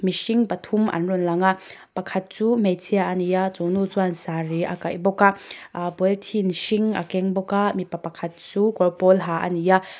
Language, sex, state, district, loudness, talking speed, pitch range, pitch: Mizo, female, Mizoram, Aizawl, -22 LUFS, 215 wpm, 180-200 Hz, 185 Hz